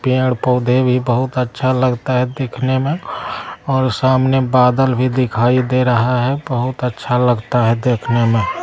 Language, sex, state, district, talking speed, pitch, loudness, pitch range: Maithili, male, Bihar, Araria, 145 wpm, 125 Hz, -16 LUFS, 125-130 Hz